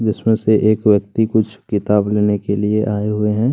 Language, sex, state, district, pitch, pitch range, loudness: Hindi, male, Chhattisgarh, Kabirdham, 105 Hz, 105-110 Hz, -16 LUFS